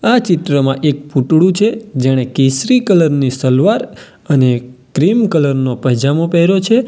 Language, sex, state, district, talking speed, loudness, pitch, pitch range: Gujarati, male, Gujarat, Valsad, 150 wpm, -13 LUFS, 150 Hz, 135-190 Hz